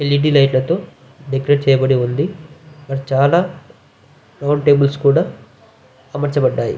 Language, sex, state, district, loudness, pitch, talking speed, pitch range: Telugu, male, Andhra Pradesh, Visakhapatnam, -16 LUFS, 140 Hz, 135 wpm, 135-150 Hz